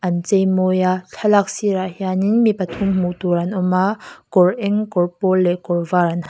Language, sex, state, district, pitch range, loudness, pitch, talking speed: Mizo, female, Mizoram, Aizawl, 180-200 Hz, -18 LUFS, 185 Hz, 230 wpm